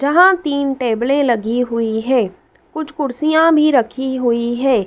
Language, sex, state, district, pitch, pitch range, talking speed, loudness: Hindi, female, Madhya Pradesh, Dhar, 265 Hz, 235-300 Hz, 150 wpm, -16 LUFS